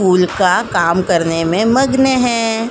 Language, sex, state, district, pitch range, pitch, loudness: Hindi, female, Uttar Pradesh, Jalaun, 180-235 Hz, 195 Hz, -14 LUFS